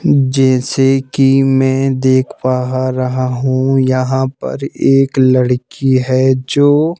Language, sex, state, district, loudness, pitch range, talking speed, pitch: Hindi, male, Madhya Pradesh, Bhopal, -13 LUFS, 130-135 Hz, 110 wpm, 130 Hz